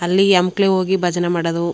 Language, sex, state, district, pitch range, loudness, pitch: Kannada, female, Karnataka, Chamarajanagar, 175-190 Hz, -17 LUFS, 180 Hz